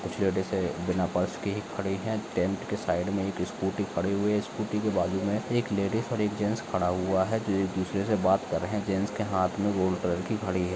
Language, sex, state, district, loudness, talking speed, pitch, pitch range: Hindi, male, Maharashtra, Dhule, -29 LUFS, 255 wpm, 95 Hz, 90-105 Hz